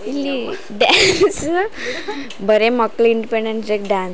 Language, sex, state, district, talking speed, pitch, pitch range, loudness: Kannada, female, Karnataka, Raichur, 130 wpm, 230 Hz, 215-330 Hz, -16 LUFS